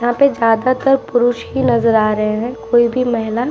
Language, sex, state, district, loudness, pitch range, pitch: Hindi, female, Uttar Pradesh, Muzaffarnagar, -15 LUFS, 225-255 Hz, 240 Hz